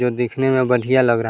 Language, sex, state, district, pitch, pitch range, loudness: Hindi, male, Bihar, Vaishali, 125 Hz, 120-130 Hz, -18 LUFS